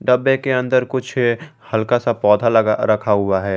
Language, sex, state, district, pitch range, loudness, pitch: Hindi, male, Jharkhand, Garhwa, 110-130 Hz, -17 LUFS, 120 Hz